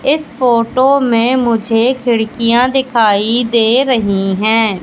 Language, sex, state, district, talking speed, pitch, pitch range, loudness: Hindi, female, Madhya Pradesh, Katni, 110 wpm, 235 Hz, 225-255 Hz, -12 LUFS